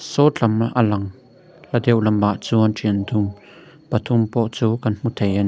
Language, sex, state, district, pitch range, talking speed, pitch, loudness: Mizo, male, Mizoram, Aizawl, 105-120 Hz, 195 wpm, 110 Hz, -20 LUFS